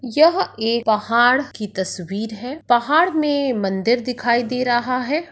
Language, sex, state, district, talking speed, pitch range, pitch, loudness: Hindi, female, Uttar Pradesh, Etah, 145 wpm, 225-285 Hz, 245 Hz, -19 LUFS